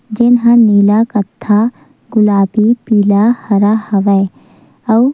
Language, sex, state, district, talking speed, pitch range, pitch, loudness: Chhattisgarhi, female, Chhattisgarh, Sukma, 115 wpm, 205-230 Hz, 215 Hz, -11 LUFS